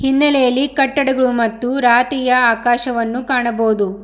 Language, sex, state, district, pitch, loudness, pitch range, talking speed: Kannada, female, Karnataka, Bidar, 250 Hz, -15 LUFS, 235-265 Hz, 90 wpm